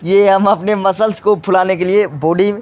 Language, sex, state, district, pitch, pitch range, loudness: Hindi, male, Bihar, Kishanganj, 195 Hz, 185-205 Hz, -13 LUFS